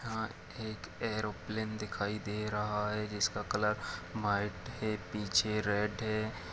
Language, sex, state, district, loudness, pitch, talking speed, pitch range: Hindi, male, Chhattisgarh, Bilaspur, -35 LUFS, 105 Hz, 130 wpm, 105-110 Hz